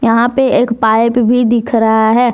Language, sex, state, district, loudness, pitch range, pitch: Hindi, female, Jharkhand, Deoghar, -11 LUFS, 225-245 Hz, 235 Hz